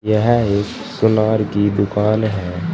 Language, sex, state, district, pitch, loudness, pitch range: Hindi, male, Uttar Pradesh, Saharanpur, 105 Hz, -17 LUFS, 100-110 Hz